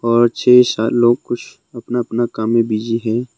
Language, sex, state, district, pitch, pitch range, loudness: Hindi, male, Arunachal Pradesh, Longding, 120 Hz, 115-120 Hz, -16 LUFS